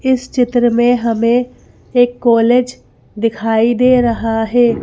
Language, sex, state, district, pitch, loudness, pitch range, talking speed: Hindi, female, Madhya Pradesh, Bhopal, 240 Hz, -14 LUFS, 230-245 Hz, 125 wpm